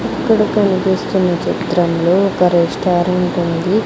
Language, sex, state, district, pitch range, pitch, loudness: Telugu, female, Andhra Pradesh, Sri Satya Sai, 175-195 Hz, 180 Hz, -15 LUFS